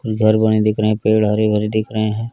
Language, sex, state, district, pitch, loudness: Hindi, male, Uttar Pradesh, Etah, 110 Hz, -16 LUFS